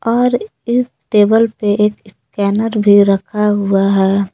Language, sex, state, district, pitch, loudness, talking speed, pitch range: Hindi, female, Jharkhand, Palamu, 210 Hz, -14 LUFS, 140 wpm, 200-225 Hz